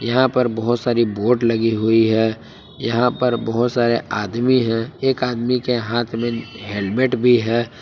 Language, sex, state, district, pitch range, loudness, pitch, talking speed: Hindi, male, Jharkhand, Palamu, 115-125 Hz, -19 LUFS, 120 Hz, 170 wpm